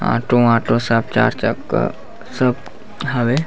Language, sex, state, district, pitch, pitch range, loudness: Chhattisgarhi, male, Chhattisgarh, Bastar, 120 Hz, 115-130 Hz, -18 LUFS